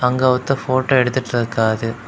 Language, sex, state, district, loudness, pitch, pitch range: Tamil, male, Tamil Nadu, Kanyakumari, -18 LUFS, 125 Hz, 120-130 Hz